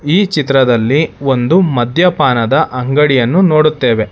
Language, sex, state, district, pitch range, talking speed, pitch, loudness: Kannada, male, Karnataka, Bangalore, 125-155 Hz, 85 wpm, 140 Hz, -12 LUFS